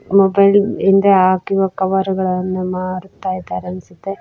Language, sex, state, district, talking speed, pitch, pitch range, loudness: Kannada, female, Karnataka, Koppal, 115 wpm, 190 Hz, 185-195 Hz, -16 LUFS